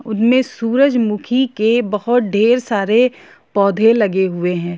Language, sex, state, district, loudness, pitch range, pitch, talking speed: Hindi, female, Jharkhand, Jamtara, -15 LUFS, 200-245 Hz, 225 Hz, 125 wpm